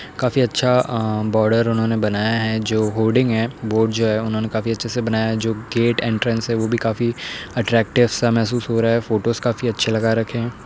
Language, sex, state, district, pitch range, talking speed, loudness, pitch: Hindi, male, Uttar Pradesh, Hamirpur, 110-120 Hz, 215 wpm, -19 LUFS, 115 Hz